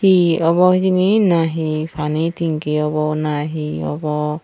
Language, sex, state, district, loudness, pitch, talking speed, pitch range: Chakma, female, Tripura, Unakoti, -17 LUFS, 155 Hz, 150 wpm, 150-170 Hz